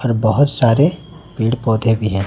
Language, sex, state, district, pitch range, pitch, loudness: Hindi, male, Chhattisgarh, Raipur, 110-145 Hz, 120 Hz, -16 LUFS